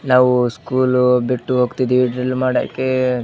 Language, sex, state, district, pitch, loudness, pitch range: Kannada, male, Karnataka, Bellary, 125 Hz, -17 LUFS, 125-130 Hz